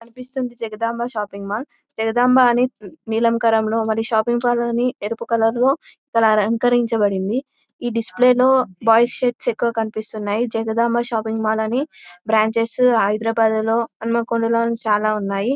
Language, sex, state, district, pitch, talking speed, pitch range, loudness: Telugu, female, Telangana, Karimnagar, 230 Hz, 130 wpm, 220-245 Hz, -19 LUFS